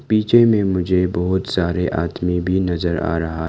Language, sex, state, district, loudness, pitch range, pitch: Hindi, male, Arunachal Pradesh, Lower Dibang Valley, -18 LUFS, 85-95 Hz, 90 Hz